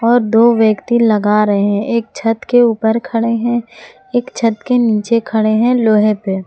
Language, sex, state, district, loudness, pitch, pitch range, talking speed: Hindi, female, Jharkhand, Palamu, -14 LUFS, 225 Hz, 215-235 Hz, 185 wpm